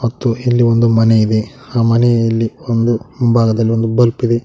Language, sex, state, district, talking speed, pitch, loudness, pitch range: Kannada, male, Karnataka, Koppal, 160 wpm, 115 Hz, -14 LUFS, 115-120 Hz